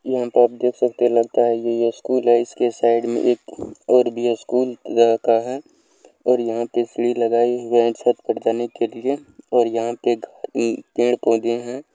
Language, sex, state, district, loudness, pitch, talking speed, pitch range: Maithili, male, Bihar, Supaul, -20 LUFS, 120 Hz, 190 wpm, 115-125 Hz